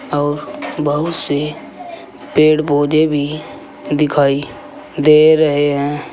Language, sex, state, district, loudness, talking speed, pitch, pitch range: Hindi, male, Uttar Pradesh, Saharanpur, -15 LUFS, 100 wpm, 150 Hz, 145-155 Hz